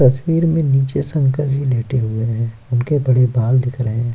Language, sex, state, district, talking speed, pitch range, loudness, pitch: Hindi, male, Bihar, Kishanganj, 205 wpm, 120-140 Hz, -17 LUFS, 130 Hz